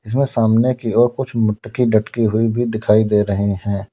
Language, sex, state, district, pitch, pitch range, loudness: Hindi, male, Uttar Pradesh, Lalitpur, 110 Hz, 105-120 Hz, -17 LUFS